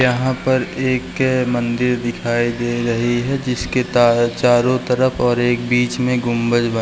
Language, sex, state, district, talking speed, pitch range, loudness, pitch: Hindi, male, Uttarakhand, Uttarkashi, 175 wpm, 120-125 Hz, -17 LUFS, 120 Hz